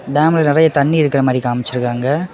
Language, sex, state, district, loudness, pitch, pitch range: Tamil, male, Tamil Nadu, Kanyakumari, -15 LUFS, 140 Hz, 125-160 Hz